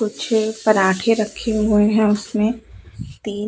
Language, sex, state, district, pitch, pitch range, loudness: Hindi, female, Chhattisgarh, Bilaspur, 215 Hz, 205-220 Hz, -18 LUFS